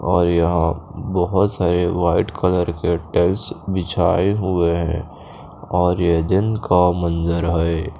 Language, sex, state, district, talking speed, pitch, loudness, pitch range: Hindi, male, Chandigarh, Chandigarh, 130 wpm, 85 Hz, -19 LUFS, 85-90 Hz